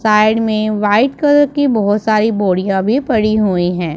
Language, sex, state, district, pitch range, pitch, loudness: Hindi, female, Punjab, Pathankot, 205-230 Hz, 215 Hz, -14 LUFS